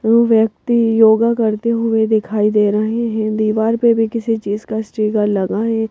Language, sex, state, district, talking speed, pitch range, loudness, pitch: Hindi, female, Madhya Pradesh, Bhopal, 185 wpm, 215-230 Hz, -16 LUFS, 220 Hz